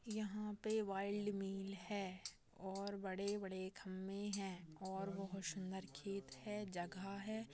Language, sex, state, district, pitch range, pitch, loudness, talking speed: Hindi, female, Maharashtra, Nagpur, 190-205 Hz, 195 Hz, -46 LUFS, 135 wpm